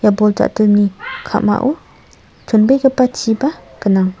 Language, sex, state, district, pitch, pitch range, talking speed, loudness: Garo, female, Meghalaya, South Garo Hills, 215 Hz, 205-260 Hz, 100 wpm, -15 LUFS